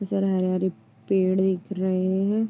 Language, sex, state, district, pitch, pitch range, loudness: Hindi, female, Uttar Pradesh, Deoria, 190 Hz, 185-195 Hz, -24 LUFS